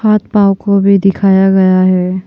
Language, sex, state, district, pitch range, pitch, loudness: Hindi, female, Arunachal Pradesh, Papum Pare, 185-200 Hz, 195 Hz, -10 LUFS